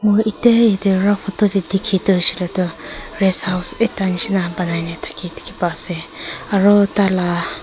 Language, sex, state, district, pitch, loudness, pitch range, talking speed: Nagamese, female, Nagaland, Kohima, 190 Hz, -17 LUFS, 175-200 Hz, 190 wpm